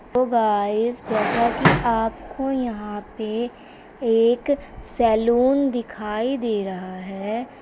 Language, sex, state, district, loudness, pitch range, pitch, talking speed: Hindi, female, Bihar, Begusarai, -21 LUFS, 215-250 Hz, 235 Hz, 100 wpm